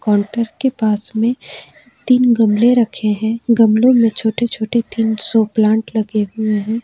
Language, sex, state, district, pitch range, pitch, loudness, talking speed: Hindi, female, Jharkhand, Ranchi, 215-235 Hz, 225 Hz, -15 LUFS, 160 wpm